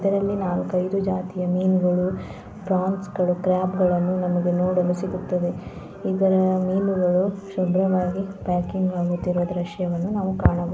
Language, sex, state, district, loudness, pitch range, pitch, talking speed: Kannada, female, Karnataka, Dharwad, -23 LUFS, 180-190 Hz, 185 Hz, 80 wpm